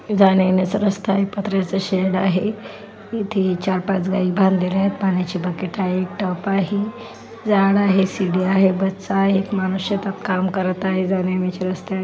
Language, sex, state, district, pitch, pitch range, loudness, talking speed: Marathi, female, Maharashtra, Solapur, 190 Hz, 185-195 Hz, -20 LUFS, 160 wpm